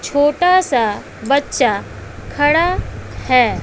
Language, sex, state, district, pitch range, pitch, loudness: Hindi, female, Bihar, West Champaran, 250-325 Hz, 285 Hz, -16 LUFS